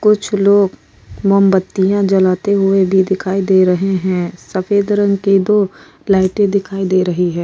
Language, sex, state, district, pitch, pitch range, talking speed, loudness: Hindi, female, Uttar Pradesh, Jyotiba Phule Nagar, 195 Hz, 185-200 Hz, 155 wpm, -14 LUFS